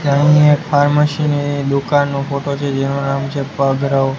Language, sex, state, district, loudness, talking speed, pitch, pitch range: Gujarati, male, Gujarat, Gandhinagar, -15 LUFS, 170 wpm, 140 Hz, 140-145 Hz